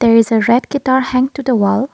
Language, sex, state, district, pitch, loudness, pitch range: English, female, Assam, Kamrup Metropolitan, 250 Hz, -14 LUFS, 230-265 Hz